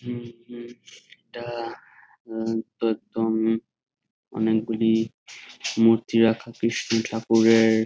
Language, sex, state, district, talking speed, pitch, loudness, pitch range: Bengali, male, West Bengal, Jhargram, 75 wpm, 115 Hz, -23 LUFS, 110-115 Hz